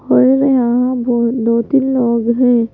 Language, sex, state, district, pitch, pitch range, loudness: Hindi, female, Madhya Pradesh, Bhopal, 245 Hz, 235-255 Hz, -14 LUFS